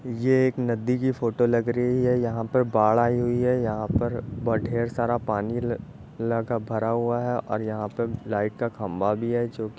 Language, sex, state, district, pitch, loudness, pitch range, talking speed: Hindi, male, Uttar Pradesh, Jyotiba Phule Nagar, 120 Hz, -25 LUFS, 110-120 Hz, 220 wpm